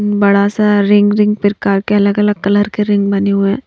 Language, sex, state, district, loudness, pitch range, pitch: Hindi, female, Haryana, Rohtak, -12 LUFS, 200-210 Hz, 205 Hz